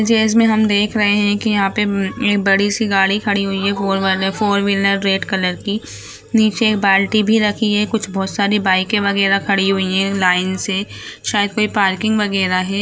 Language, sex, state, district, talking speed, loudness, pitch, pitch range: Hindi, female, Bihar, Jamui, 195 wpm, -16 LUFS, 200 Hz, 195-210 Hz